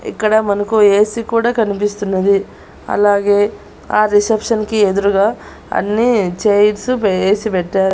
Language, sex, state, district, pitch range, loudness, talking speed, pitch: Telugu, female, Andhra Pradesh, Annamaya, 200-220 Hz, -15 LUFS, 105 wpm, 205 Hz